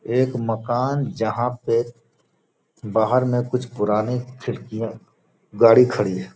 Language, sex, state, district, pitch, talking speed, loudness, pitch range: Hindi, male, Bihar, Gopalganj, 120 Hz, 115 wpm, -21 LUFS, 110-125 Hz